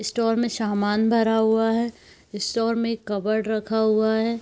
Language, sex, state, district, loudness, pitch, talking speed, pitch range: Hindi, female, Bihar, East Champaran, -23 LUFS, 220 Hz, 165 wpm, 215-230 Hz